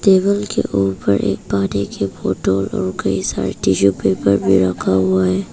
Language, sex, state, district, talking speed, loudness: Hindi, female, Arunachal Pradesh, Papum Pare, 175 wpm, -17 LUFS